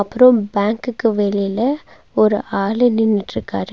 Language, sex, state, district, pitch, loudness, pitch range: Tamil, female, Tamil Nadu, Nilgiris, 215 Hz, -17 LUFS, 200-245 Hz